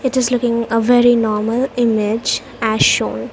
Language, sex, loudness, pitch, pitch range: English, female, -16 LUFS, 235 Hz, 225-245 Hz